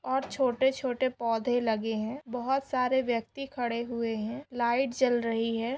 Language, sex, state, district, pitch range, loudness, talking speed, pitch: Hindi, female, Maharashtra, Aurangabad, 230-260 Hz, -30 LUFS, 165 wpm, 245 Hz